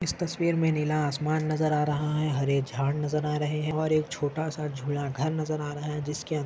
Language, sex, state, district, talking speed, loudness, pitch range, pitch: Hindi, male, Maharashtra, Nagpur, 260 wpm, -28 LUFS, 145-155 Hz, 150 Hz